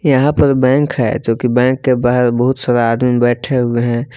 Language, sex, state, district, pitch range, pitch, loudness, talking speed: Hindi, male, Jharkhand, Palamu, 120-130 Hz, 125 Hz, -14 LUFS, 200 wpm